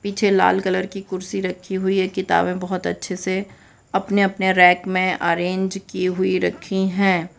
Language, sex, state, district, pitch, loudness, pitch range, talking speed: Hindi, female, Gujarat, Valsad, 190 Hz, -20 LUFS, 185-190 Hz, 170 wpm